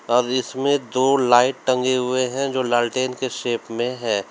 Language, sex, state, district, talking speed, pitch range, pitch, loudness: Hindi, male, Uttar Pradesh, Lalitpur, 180 wpm, 120-130 Hz, 125 Hz, -20 LUFS